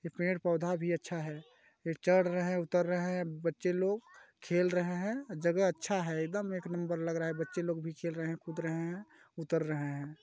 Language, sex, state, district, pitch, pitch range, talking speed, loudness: Hindi, male, Chhattisgarh, Korba, 170 Hz, 165-180 Hz, 215 wpm, -34 LUFS